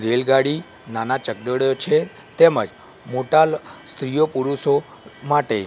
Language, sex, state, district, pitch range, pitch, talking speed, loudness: Gujarati, male, Gujarat, Gandhinagar, 125-145 Hz, 135 Hz, 95 wpm, -20 LUFS